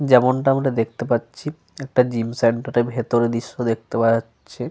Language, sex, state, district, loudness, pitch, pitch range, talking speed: Bengali, male, Jharkhand, Sahebganj, -20 LUFS, 120 Hz, 115-135 Hz, 165 wpm